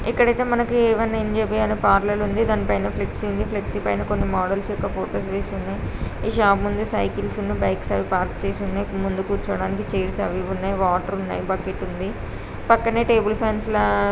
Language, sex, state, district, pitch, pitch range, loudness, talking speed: Telugu, female, Andhra Pradesh, Srikakulam, 200 Hz, 180-220 Hz, -22 LUFS, 175 wpm